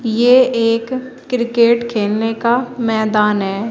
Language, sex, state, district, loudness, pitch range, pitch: Hindi, female, Uttar Pradesh, Shamli, -15 LUFS, 220-245 Hz, 230 Hz